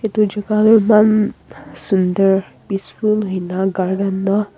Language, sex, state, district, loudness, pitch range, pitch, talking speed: Nagamese, female, Nagaland, Kohima, -16 LUFS, 190-215 Hz, 195 Hz, 115 wpm